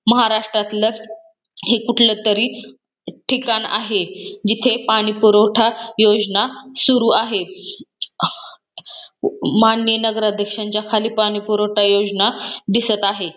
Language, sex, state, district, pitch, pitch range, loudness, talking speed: Marathi, female, Maharashtra, Pune, 220 Hz, 210-230 Hz, -16 LUFS, 90 wpm